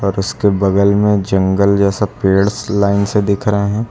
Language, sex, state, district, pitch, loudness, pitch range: Hindi, male, Uttar Pradesh, Lucknow, 100 Hz, -14 LUFS, 100-105 Hz